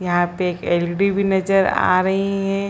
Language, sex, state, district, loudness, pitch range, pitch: Hindi, female, Bihar, Purnia, -19 LUFS, 175-195 Hz, 190 Hz